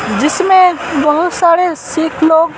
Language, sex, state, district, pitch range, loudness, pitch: Hindi, female, Bihar, Patna, 315-355 Hz, -12 LUFS, 325 Hz